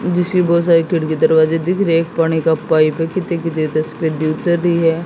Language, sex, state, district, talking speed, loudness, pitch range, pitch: Hindi, female, Haryana, Jhajjar, 165 wpm, -16 LUFS, 160-170 Hz, 165 Hz